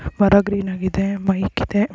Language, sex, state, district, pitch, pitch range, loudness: Kannada, female, Karnataka, Raichur, 200 Hz, 190-200 Hz, -19 LUFS